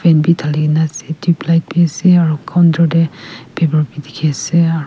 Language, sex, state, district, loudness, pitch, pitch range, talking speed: Nagamese, female, Nagaland, Kohima, -14 LUFS, 165 Hz, 155-170 Hz, 170 wpm